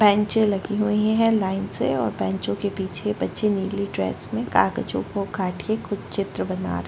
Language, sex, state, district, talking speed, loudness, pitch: Hindi, female, Chhattisgarh, Balrampur, 200 wpm, -24 LUFS, 195 Hz